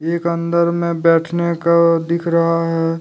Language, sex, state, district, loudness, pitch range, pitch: Hindi, male, Jharkhand, Deoghar, -16 LUFS, 165-170 Hz, 170 Hz